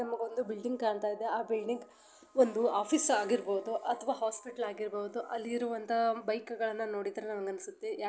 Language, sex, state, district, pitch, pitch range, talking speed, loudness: Kannada, female, Karnataka, Belgaum, 230 Hz, 215-240 Hz, 120 wpm, -34 LUFS